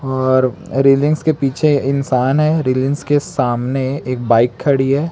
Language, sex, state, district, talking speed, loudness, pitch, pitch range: Hindi, male, Chhattisgarh, Raipur, 150 wpm, -16 LUFS, 135 Hz, 130-145 Hz